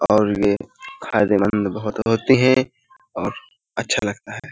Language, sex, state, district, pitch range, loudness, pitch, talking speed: Hindi, male, Uttar Pradesh, Hamirpur, 105-130 Hz, -20 LUFS, 110 Hz, 135 wpm